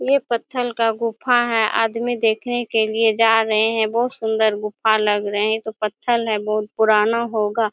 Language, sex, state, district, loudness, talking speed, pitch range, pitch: Hindi, female, Chhattisgarh, Korba, -19 LUFS, 195 wpm, 215-235 Hz, 225 Hz